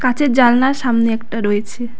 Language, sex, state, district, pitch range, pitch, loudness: Bengali, female, West Bengal, Cooch Behar, 225-255 Hz, 240 Hz, -15 LUFS